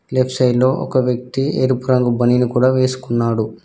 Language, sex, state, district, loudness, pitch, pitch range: Telugu, male, Telangana, Mahabubabad, -17 LUFS, 130 Hz, 120-130 Hz